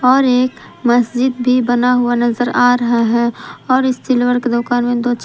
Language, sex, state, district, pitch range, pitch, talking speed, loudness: Hindi, female, Jharkhand, Palamu, 240-250 Hz, 245 Hz, 195 wpm, -14 LUFS